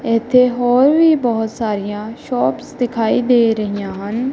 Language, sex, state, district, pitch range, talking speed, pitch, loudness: Punjabi, female, Punjab, Kapurthala, 220-250 Hz, 140 wpm, 235 Hz, -16 LUFS